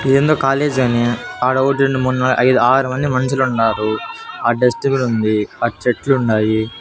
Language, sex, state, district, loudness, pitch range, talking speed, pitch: Telugu, male, Andhra Pradesh, Annamaya, -16 LUFS, 115-135 Hz, 175 wpm, 130 Hz